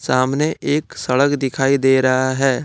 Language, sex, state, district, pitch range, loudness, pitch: Hindi, male, Jharkhand, Deoghar, 130-140 Hz, -17 LUFS, 135 Hz